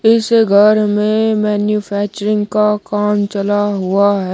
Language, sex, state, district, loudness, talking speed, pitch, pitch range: Hindi, male, Uttar Pradesh, Shamli, -14 LUFS, 125 wpm, 210 Hz, 205-210 Hz